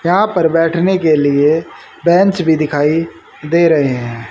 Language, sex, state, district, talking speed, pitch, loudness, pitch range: Hindi, male, Haryana, Charkhi Dadri, 155 wpm, 165 Hz, -13 LUFS, 150-170 Hz